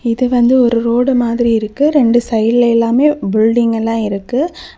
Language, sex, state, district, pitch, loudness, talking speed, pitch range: Tamil, female, Tamil Nadu, Kanyakumari, 235 Hz, -13 LUFS, 150 wpm, 225-255 Hz